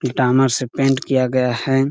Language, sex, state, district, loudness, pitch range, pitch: Hindi, male, Chhattisgarh, Sarguja, -18 LUFS, 125-135 Hz, 130 Hz